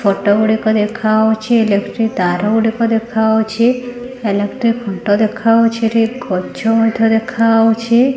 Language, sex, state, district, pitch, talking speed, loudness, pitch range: Odia, female, Odisha, Khordha, 225 Hz, 125 wpm, -14 LUFS, 215-230 Hz